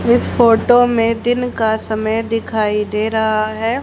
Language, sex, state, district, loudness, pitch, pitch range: Hindi, female, Haryana, Jhajjar, -16 LUFS, 225 Hz, 220-235 Hz